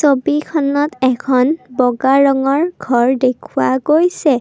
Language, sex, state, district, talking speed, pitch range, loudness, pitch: Assamese, female, Assam, Kamrup Metropolitan, 95 wpm, 255-300 Hz, -15 LUFS, 275 Hz